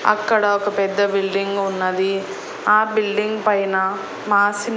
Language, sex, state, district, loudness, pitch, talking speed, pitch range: Telugu, female, Andhra Pradesh, Annamaya, -19 LUFS, 200 Hz, 115 wpm, 195-210 Hz